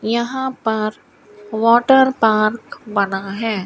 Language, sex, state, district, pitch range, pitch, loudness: Hindi, female, Rajasthan, Bikaner, 215-235 Hz, 220 Hz, -17 LUFS